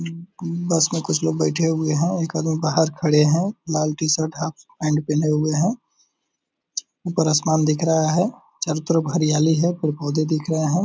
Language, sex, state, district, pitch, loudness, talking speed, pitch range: Hindi, male, Bihar, Purnia, 160 Hz, -21 LUFS, 215 wpm, 155-165 Hz